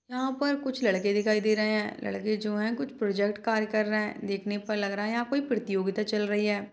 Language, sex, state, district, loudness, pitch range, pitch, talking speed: Hindi, female, Chhattisgarh, Bastar, -29 LUFS, 205-230 Hz, 215 Hz, 250 wpm